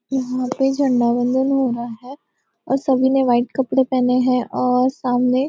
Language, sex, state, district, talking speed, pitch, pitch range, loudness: Hindi, female, Maharashtra, Nagpur, 185 wpm, 255 Hz, 250-265 Hz, -18 LUFS